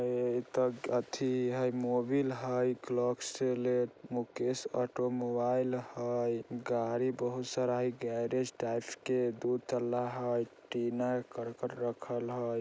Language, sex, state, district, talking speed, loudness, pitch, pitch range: Bajjika, male, Bihar, Vaishali, 80 wpm, -34 LUFS, 125 Hz, 120-125 Hz